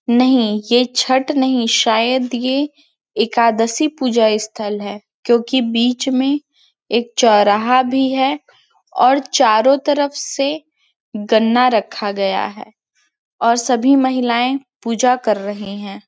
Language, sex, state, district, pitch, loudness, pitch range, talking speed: Hindi, female, Chhattisgarh, Balrampur, 245 Hz, -16 LUFS, 220-265 Hz, 125 wpm